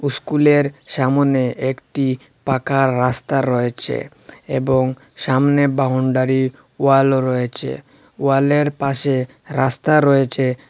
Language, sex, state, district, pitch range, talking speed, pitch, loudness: Bengali, male, Assam, Hailakandi, 130-140 Hz, 85 wpm, 135 Hz, -18 LUFS